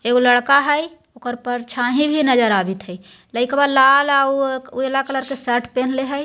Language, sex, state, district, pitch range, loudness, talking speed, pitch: Hindi, female, Bihar, Jahanabad, 245-275 Hz, -17 LUFS, 170 wpm, 260 Hz